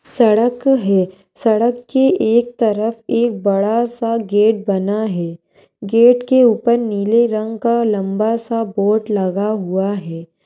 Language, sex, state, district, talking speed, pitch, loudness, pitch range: Kumaoni, female, Uttarakhand, Tehri Garhwal, 140 wpm, 220 Hz, -16 LUFS, 200-235 Hz